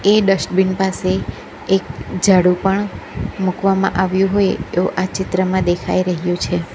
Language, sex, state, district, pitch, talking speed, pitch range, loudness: Gujarati, female, Gujarat, Valsad, 190 Hz, 135 wpm, 180-195 Hz, -17 LUFS